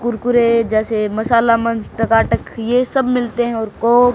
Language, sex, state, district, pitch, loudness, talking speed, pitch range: Hindi, male, Haryana, Charkhi Dadri, 230 Hz, -16 LUFS, 160 wpm, 225-240 Hz